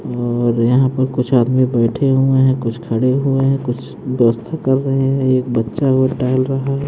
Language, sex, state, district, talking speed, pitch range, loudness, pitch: Hindi, male, Haryana, Jhajjar, 190 wpm, 120-135 Hz, -16 LUFS, 130 Hz